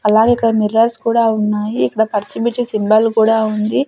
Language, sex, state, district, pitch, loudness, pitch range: Telugu, female, Andhra Pradesh, Sri Satya Sai, 220 Hz, -15 LUFS, 215-230 Hz